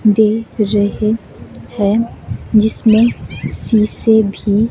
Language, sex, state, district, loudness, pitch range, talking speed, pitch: Hindi, female, Himachal Pradesh, Shimla, -15 LUFS, 210-225 Hz, 90 wpm, 215 Hz